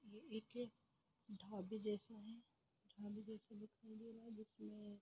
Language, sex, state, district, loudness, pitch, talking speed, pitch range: Hindi, female, Chhattisgarh, Rajnandgaon, -54 LUFS, 215 Hz, 145 wpm, 205-220 Hz